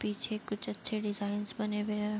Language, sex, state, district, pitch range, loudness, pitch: Hindi, female, Uttar Pradesh, Jalaun, 205-210 Hz, -35 LUFS, 210 Hz